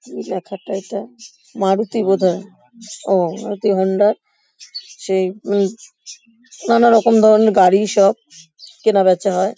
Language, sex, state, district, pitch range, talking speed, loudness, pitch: Bengali, female, West Bengal, Paschim Medinipur, 190-220 Hz, 115 wpm, -16 LUFS, 200 Hz